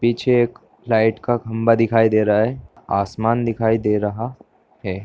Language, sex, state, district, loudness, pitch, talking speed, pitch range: Hindi, male, Bihar, Darbhanga, -19 LUFS, 115 Hz, 165 wpm, 105-115 Hz